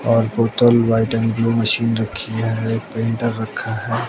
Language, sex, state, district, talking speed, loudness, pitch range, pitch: Hindi, male, Bihar, West Champaran, 175 wpm, -18 LUFS, 110-115 Hz, 115 Hz